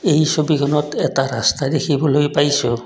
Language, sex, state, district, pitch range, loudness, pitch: Assamese, male, Assam, Kamrup Metropolitan, 135-155 Hz, -17 LUFS, 145 Hz